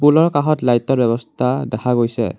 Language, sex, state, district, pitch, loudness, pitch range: Assamese, male, Assam, Kamrup Metropolitan, 125 Hz, -17 LUFS, 115-145 Hz